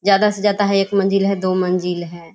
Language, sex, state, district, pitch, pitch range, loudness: Hindi, female, Bihar, Sitamarhi, 195 Hz, 180-200 Hz, -18 LUFS